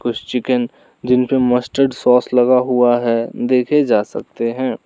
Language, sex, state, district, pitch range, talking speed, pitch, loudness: Hindi, male, Arunachal Pradesh, Lower Dibang Valley, 120-130 Hz, 160 wpm, 125 Hz, -16 LUFS